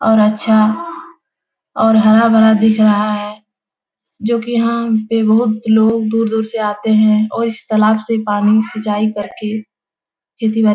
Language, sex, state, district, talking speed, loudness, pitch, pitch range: Hindi, female, Bihar, Jahanabad, 145 wpm, -14 LUFS, 220 Hz, 215-225 Hz